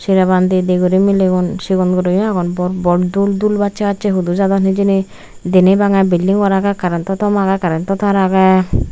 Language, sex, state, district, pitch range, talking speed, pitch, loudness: Chakma, female, Tripura, Unakoti, 180-200 Hz, 160 wpm, 190 Hz, -14 LUFS